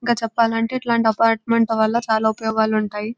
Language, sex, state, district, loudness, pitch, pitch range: Telugu, female, Telangana, Nalgonda, -19 LUFS, 225 Hz, 220-230 Hz